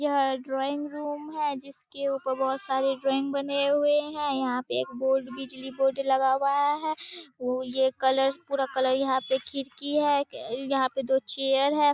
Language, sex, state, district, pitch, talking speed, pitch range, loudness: Hindi, female, Bihar, Darbhanga, 270 Hz, 170 wpm, 265-285 Hz, -27 LUFS